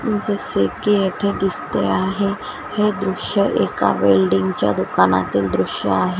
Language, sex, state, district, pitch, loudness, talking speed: Marathi, female, Maharashtra, Washim, 190 Hz, -19 LUFS, 125 wpm